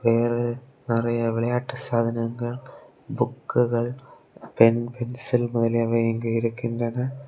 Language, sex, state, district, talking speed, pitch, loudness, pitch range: Tamil, male, Tamil Nadu, Kanyakumari, 90 wpm, 120 Hz, -24 LUFS, 115-120 Hz